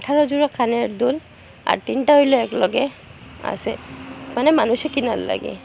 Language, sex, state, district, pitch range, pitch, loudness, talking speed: Bengali, female, Assam, Hailakandi, 240-295 Hz, 265 Hz, -20 LUFS, 140 wpm